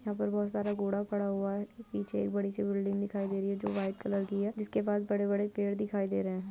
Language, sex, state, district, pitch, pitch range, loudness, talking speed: Hindi, female, Uttar Pradesh, Jyotiba Phule Nagar, 200 Hz, 195-205 Hz, -33 LUFS, 275 wpm